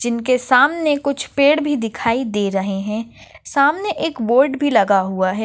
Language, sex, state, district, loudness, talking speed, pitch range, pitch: Hindi, female, Maharashtra, Nagpur, -17 LUFS, 175 wpm, 215-285 Hz, 250 Hz